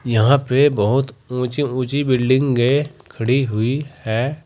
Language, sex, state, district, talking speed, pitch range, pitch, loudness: Hindi, male, Uttar Pradesh, Saharanpur, 120 wpm, 120-140 Hz, 130 Hz, -18 LUFS